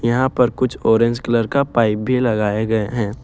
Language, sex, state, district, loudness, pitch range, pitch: Hindi, male, Jharkhand, Ranchi, -18 LUFS, 110-125 Hz, 115 Hz